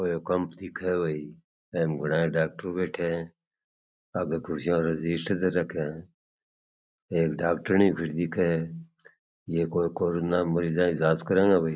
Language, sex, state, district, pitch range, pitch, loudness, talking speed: Marwari, male, Rajasthan, Churu, 80-90 Hz, 85 Hz, -27 LUFS, 155 wpm